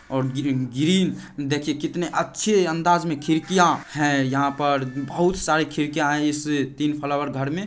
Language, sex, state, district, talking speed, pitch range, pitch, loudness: Hindi, male, Bihar, Saharsa, 155 wpm, 140-165 Hz, 150 Hz, -22 LUFS